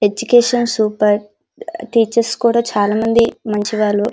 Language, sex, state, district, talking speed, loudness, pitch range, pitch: Telugu, female, Andhra Pradesh, Srikakulam, 115 wpm, -15 LUFS, 210-235 Hz, 225 Hz